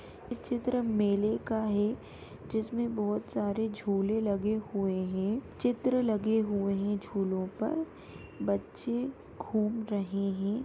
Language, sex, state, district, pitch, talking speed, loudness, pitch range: Hindi, female, Uttar Pradesh, Budaun, 210 Hz, 125 wpm, -32 LUFS, 200-225 Hz